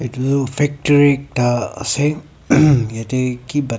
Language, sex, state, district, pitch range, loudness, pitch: Nagamese, female, Nagaland, Kohima, 125-145 Hz, -17 LUFS, 135 Hz